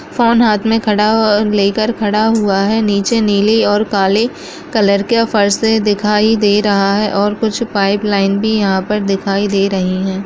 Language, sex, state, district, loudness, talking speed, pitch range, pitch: Kumaoni, female, Uttarakhand, Uttarkashi, -13 LUFS, 175 wpm, 200-220 Hz, 210 Hz